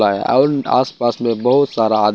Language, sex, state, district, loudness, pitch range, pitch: Hindi, male, Bihar, Katihar, -16 LUFS, 110-130 Hz, 120 Hz